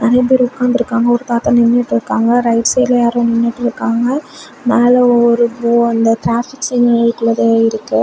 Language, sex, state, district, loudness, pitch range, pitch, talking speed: Tamil, female, Tamil Nadu, Kanyakumari, -13 LUFS, 235-245 Hz, 235 Hz, 125 wpm